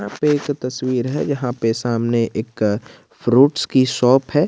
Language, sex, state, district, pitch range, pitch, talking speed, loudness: Hindi, male, Jharkhand, Garhwa, 115-145 Hz, 125 Hz, 135 wpm, -18 LUFS